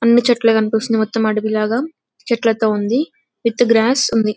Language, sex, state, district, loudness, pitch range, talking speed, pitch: Telugu, female, Telangana, Karimnagar, -16 LUFS, 220-240 Hz, 135 wpm, 225 Hz